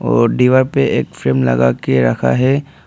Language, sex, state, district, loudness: Hindi, male, Arunachal Pradesh, Papum Pare, -14 LUFS